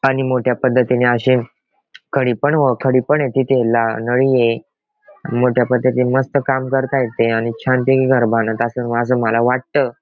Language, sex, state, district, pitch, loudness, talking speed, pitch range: Marathi, male, Maharashtra, Pune, 125 Hz, -16 LUFS, 170 wpm, 120-135 Hz